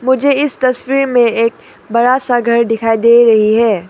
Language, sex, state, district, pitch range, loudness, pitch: Hindi, female, Arunachal Pradesh, Papum Pare, 230-255 Hz, -12 LUFS, 235 Hz